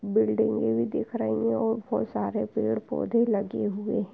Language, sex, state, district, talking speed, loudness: Hindi, female, Uttar Pradesh, Etah, 190 wpm, -27 LUFS